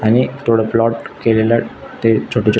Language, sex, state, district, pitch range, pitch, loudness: Marathi, male, Maharashtra, Nagpur, 110-115 Hz, 115 Hz, -16 LUFS